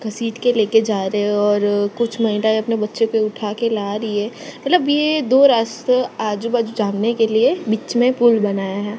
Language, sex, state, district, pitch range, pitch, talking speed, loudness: Hindi, female, Gujarat, Gandhinagar, 210-235 Hz, 220 Hz, 205 wpm, -18 LUFS